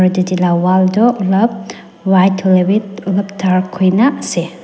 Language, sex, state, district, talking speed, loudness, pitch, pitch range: Nagamese, female, Nagaland, Dimapur, 170 wpm, -13 LUFS, 190 Hz, 185-200 Hz